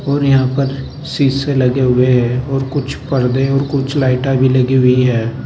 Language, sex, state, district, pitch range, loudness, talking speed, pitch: Hindi, male, Uttar Pradesh, Saharanpur, 125-140 Hz, -14 LUFS, 185 wpm, 135 Hz